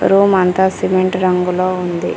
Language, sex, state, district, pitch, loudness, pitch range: Telugu, female, Telangana, Komaram Bheem, 185 Hz, -14 LUFS, 180-190 Hz